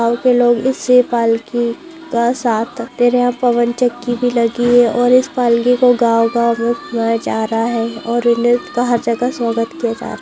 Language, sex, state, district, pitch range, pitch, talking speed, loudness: Hindi, female, Bihar, Saharsa, 235-245 Hz, 240 Hz, 55 wpm, -15 LUFS